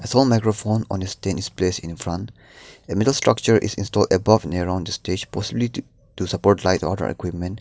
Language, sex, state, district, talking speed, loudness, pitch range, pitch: English, male, Nagaland, Dimapur, 195 wpm, -21 LUFS, 90-110 Hz, 100 Hz